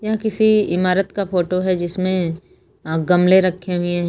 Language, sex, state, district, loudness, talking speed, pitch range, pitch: Hindi, female, Uttar Pradesh, Lucknow, -18 LUFS, 175 wpm, 175-195 Hz, 185 Hz